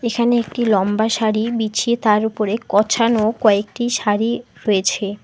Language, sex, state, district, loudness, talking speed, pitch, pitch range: Bengali, female, West Bengal, Alipurduar, -18 LUFS, 125 wpm, 220 Hz, 210-235 Hz